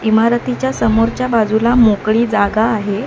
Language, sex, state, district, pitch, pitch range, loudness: Marathi, female, Maharashtra, Mumbai Suburban, 225 Hz, 215-235 Hz, -14 LUFS